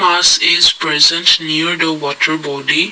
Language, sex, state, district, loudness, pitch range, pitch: English, male, Assam, Kamrup Metropolitan, -11 LUFS, 150-170 Hz, 160 Hz